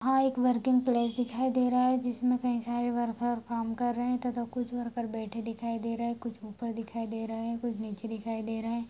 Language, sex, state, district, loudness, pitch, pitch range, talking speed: Hindi, female, Bihar, Sitamarhi, -31 LUFS, 235 Hz, 230-245 Hz, 245 wpm